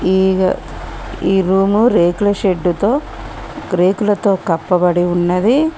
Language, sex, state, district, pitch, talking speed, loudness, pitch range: Telugu, female, Telangana, Komaram Bheem, 190 Hz, 85 wpm, -15 LUFS, 180-205 Hz